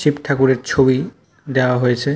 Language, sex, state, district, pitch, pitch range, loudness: Bengali, male, West Bengal, North 24 Parganas, 135 Hz, 130-145 Hz, -17 LUFS